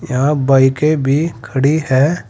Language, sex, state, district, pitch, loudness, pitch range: Hindi, male, Uttar Pradesh, Saharanpur, 140 Hz, -14 LUFS, 130-155 Hz